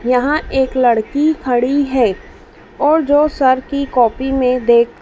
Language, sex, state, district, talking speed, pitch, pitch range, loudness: Hindi, female, Madhya Pradesh, Dhar, 155 wpm, 260 Hz, 245-285 Hz, -15 LUFS